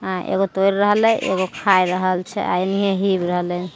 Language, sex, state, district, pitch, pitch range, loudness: Maithili, female, Bihar, Begusarai, 185 Hz, 180-195 Hz, -19 LUFS